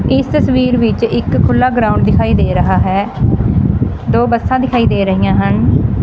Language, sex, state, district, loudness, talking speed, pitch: Punjabi, female, Punjab, Fazilka, -12 LUFS, 160 wpm, 195 Hz